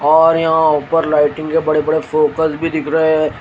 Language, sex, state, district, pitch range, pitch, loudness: Hindi, male, Haryana, Rohtak, 155-160 Hz, 155 Hz, -14 LUFS